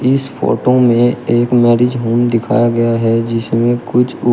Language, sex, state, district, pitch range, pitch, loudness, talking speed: Hindi, male, Uttar Pradesh, Shamli, 115-125 Hz, 120 Hz, -13 LUFS, 165 wpm